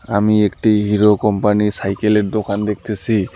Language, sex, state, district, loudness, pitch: Bengali, male, West Bengal, Alipurduar, -16 LUFS, 105 Hz